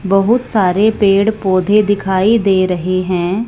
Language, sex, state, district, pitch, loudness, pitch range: Hindi, female, Punjab, Fazilka, 195 Hz, -13 LUFS, 185-210 Hz